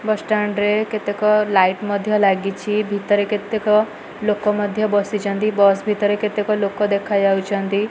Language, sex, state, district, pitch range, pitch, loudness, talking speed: Odia, female, Odisha, Malkangiri, 200-210 Hz, 205 Hz, -19 LUFS, 130 wpm